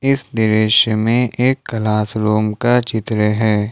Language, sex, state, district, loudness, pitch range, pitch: Hindi, male, Jharkhand, Ranchi, -16 LUFS, 105-120 Hz, 110 Hz